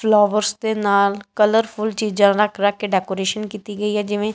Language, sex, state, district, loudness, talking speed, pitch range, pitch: Punjabi, female, Punjab, Kapurthala, -19 LUFS, 180 wpm, 205-215 Hz, 210 Hz